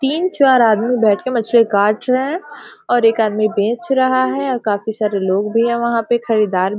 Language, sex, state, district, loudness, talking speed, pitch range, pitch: Hindi, female, Bihar, Gopalganj, -16 LUFS, 220 wpm, 215-255 Hz, 230 Hz